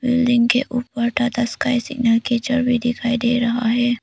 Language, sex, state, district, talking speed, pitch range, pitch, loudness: Hindi, female, Arunachal Pradesh, Papum Pare, 165 wpm, 235-245 Hz, 240 Hz, -19 LUFS